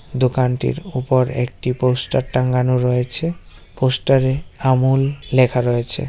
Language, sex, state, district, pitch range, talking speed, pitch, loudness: Bengali, male, West Bengal, Jalpaiguri, 125-135 Hz, 110 wpm, 130 Hz, -18 LUFS